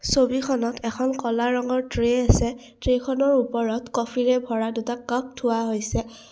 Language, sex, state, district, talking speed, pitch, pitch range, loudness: Assamese, female, Assam, Kamrup Metropolitan, 135 wpm, 245 Hz, 235-255 Hz, -24 LUFS